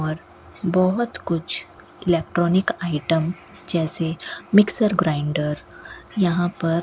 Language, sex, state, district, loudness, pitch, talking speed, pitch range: Hindi, female, Rajasthan, Bikaner, -22 LUFS, 170 Hz, 95 wpm, 160-185 Hz